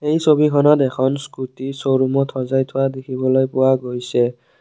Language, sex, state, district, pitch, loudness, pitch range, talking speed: Assamese, male, Assam, Kamrup Metropolitan, 130 Hz, -18 LUFS, 130-135 Hz, 130 wpm